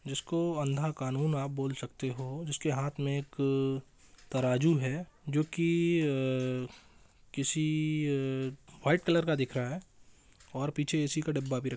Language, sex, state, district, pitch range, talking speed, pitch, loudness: Hindi, male, Bihar, East Champaran, 130-155 Hz, 160 wpm, 140 Hz, -32 LUFS